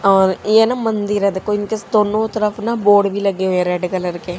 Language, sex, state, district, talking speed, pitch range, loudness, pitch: Hindi, female, Haryana, Jhajjar, 230 wpm, 190-215 Hz, -17 LUFS, 205 Hz